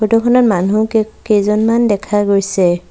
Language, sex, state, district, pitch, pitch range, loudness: Assamese, female, Assam, Sonitpur, 210 Hz, 200-225 Hz, -14 LUFS